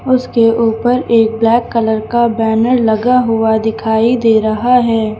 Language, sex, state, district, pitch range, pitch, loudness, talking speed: Hindi, female, Uttar Pradesh, Lucknow, 220-240 Hz, 230 Hz, -12 LUFS, 150 wpm